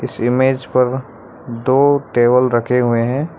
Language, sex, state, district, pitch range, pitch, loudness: Hindi, male, Arunachal Pradesh, Lower Dibang Valley, 120-130 Hz, 125 Hz, -15 LUFS